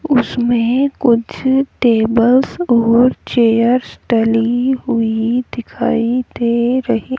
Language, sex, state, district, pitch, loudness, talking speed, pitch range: Hindi, female, Haryana, Rohtak, 240 Hz, -15 LUFS, 85 wpm, 230-255 Hz